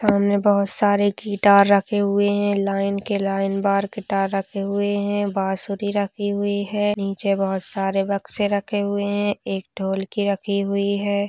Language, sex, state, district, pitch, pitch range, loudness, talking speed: Hindi, female, Uttarakhand, Tehri Garhwal, 200 Hz, 195-205 Hz, -21 LUFS, 165 wpm